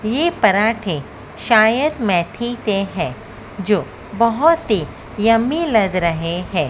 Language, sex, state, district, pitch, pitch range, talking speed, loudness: Hindi, female, Maharashtra, Mumbai Suburban, 210 Hz, 175-230 Hz, 115 wpm, -17 LUFS